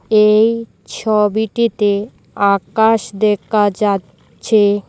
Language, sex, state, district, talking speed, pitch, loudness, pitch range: Bengali, female, Assam, Hailakandi, 75 wpm, 210 Hz, -15 LUFS, 200-220 Hz